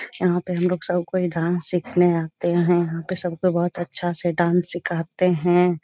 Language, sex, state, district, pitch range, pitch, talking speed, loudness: Hindi, female, Bihar, Jahanabad, 175-180 Hz, 175 Hz, 185 wpm, -22 LUFS